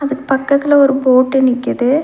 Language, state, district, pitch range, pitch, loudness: Tamil, Tamil Nadu, Nilgiris, 260-280 Hz, 270 Hz, -13 LUFS